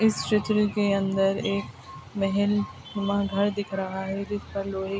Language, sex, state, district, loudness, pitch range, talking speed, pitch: Hindi, female, Bihar, Araria, -26 LUFS, 195-205 Hz, 180 wpm, 200 Hz